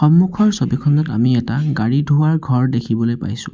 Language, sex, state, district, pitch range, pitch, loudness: Assamese, male, Assam, Sonitpur, 120-155 Hz, 135 Hz, -17 LUFS